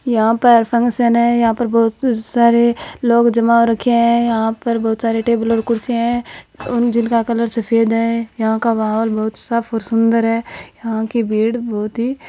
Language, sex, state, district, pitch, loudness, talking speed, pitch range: Marwari, female, Rajasthan, Churu, 230 Hz, -16 LUFS, 170 wpm, 225-235 Hz